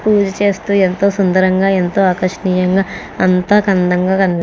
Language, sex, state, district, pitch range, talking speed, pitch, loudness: Telugu, female, Andhra Pradesh, Krishna, 185-200 Hz, 135 wpm, 190 Hz, -14 LUFS